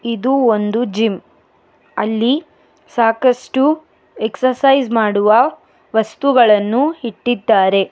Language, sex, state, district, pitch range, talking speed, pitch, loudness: Kannada, female, Karnataka, Bangalore, 220-270 Hz, 70 wpm, 235 Hz, -15 LUFS